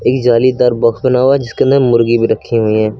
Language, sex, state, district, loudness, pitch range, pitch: Hindi, male, Uttar Pradesh, Lucknow, -12 LUFS, 115-130 Hz, 120 Hz